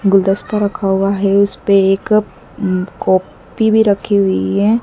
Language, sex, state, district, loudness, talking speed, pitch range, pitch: Hindi, female, Madhya Pradesh, Dhar, -14 LUFS, 135 wpm, 195-210 Hz, 200 Hz